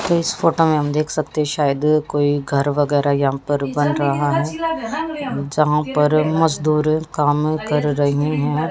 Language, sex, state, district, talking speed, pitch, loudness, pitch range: Hindi, female, Haryana, Jhajjar, 160 wpm, 150 Hz, -18 LUFS, 145-155 Hz